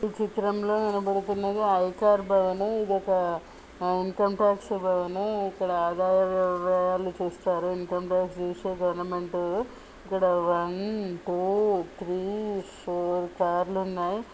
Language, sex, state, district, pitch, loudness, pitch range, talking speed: Telugu, female, Telangana, Nalgonda, 185 Hz, -27 LUFS, 180-205 Hz, 115 wpm